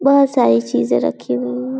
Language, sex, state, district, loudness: Hindi, female, Chhattisgarh, Balrampur, -16 LUFS